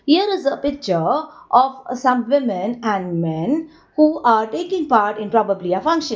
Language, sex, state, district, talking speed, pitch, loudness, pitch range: English, female, Gujarat, Valsad, 165 wpm, 255 Hz, -19 LUFS, 215-305 Hz